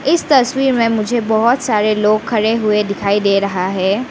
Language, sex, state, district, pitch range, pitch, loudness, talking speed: Hindi, female, Arunachal Pradesh, Lower Dibang Valley, 205-245 Hz, 215 Hz, -15 LUFS, 190 wpm